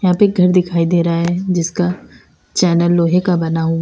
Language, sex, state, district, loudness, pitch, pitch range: Hindi, female, Uttar Pradesh, Lalitpur, -15 LUFS, 175 Hz, 170-180 Hz